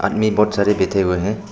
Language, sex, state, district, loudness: Hindi, male, Arunachal Pradesh, Papum Pare, -18 LUFS